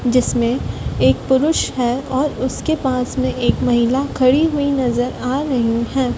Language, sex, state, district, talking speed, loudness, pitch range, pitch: Hindi, female, Madhya Pradesh, Dhar, 155 wpm, -18 LUFS, 245-270 Hz, 260 Hz